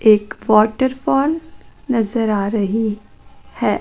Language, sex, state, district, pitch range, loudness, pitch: Hindi, female, Chandigarh, Chandigarh, 215-260 Hz, -18 LUFS, 220 Hz